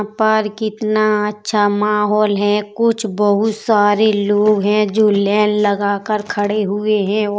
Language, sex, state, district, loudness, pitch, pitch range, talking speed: Bundeli, female, Uttar Pradesh, Jalaun, -16 LUFS, 210 Hz, 205-215 Hz, 145 wpm